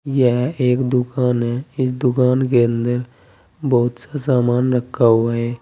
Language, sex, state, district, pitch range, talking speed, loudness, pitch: Hindi, male, Uttar Pradesh, Saharanpur, 120-130 Hz, 150 wpm, -18 LUFS, 125 Hz